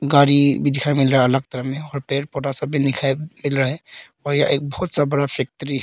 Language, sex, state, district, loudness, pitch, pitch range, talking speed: Hindi, male, Arunachal Pradesh, Papum Pare, -19 LUFS, 140 Hz, 135-145 Hz, 215 wpm